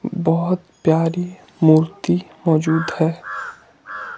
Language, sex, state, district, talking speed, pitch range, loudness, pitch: Hindi, male, Himachal Pradesh, Shimla, 70 wpm, 160-175 Hz, -19 LUFS, 165 Hz